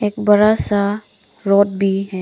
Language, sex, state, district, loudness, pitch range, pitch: Hindi, female, Arunachal Pradesh, Papum Pare, -16 LUFS, 200-210 Hz, 205 Hz